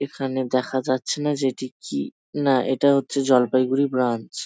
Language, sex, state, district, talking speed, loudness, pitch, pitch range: Bengali, male, West Bengal, Jalpaiguri, 175 wpm, -22 LUFS, 130 Hz, 130-140 Hz